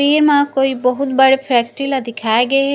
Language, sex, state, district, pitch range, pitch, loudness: Chhattisgarhi, female, Chhattisgarh, Raigarh, 250-275 Hz, 270 Hz, -15 LUFS